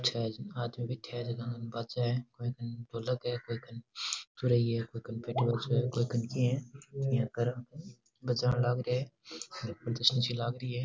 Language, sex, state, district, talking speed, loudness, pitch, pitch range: Rajasthani, male, Rajasthan, Nagaur, 155 wpm, -34 LUFS, 120 Hz, 120-125 Hz